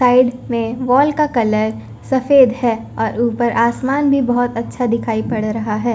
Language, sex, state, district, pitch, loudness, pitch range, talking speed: Hindi, female, Punjab, Fazilka, 240 Hz, -16 LUFS, 225-255 Hz, 170 wpm